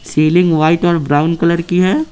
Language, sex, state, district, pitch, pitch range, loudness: Hindi, male, Bihar, Patna, 170 Hz, 155-175 Hz, -13 LUFS